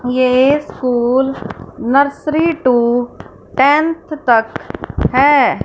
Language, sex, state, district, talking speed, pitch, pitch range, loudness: Hindi, female, Punjab, Fazilka, 75 wpm, 265 Hz, 245-295 Hz, -14 LUFS